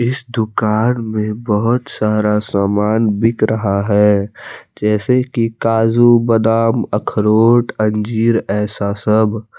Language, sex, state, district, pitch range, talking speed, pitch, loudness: Hindi, male, Jharkhand, Palamu, 105-115 Hz, 105 wpm, 110 Hz, -15 LUFS